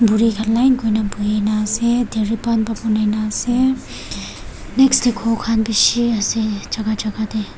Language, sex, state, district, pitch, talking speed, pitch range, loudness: Nagamese, female, Nagaland, Kohima, 225 Hz, 140 wpm, 215-235 Hz, -18 LUFS